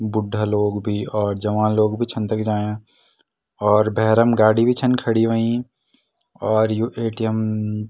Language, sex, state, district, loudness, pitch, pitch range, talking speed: Garhwali, male, Uttarakhand, Tehri Garhwal, -20 LUFS, 110 Hz, 105-115 Hz, 160 wpm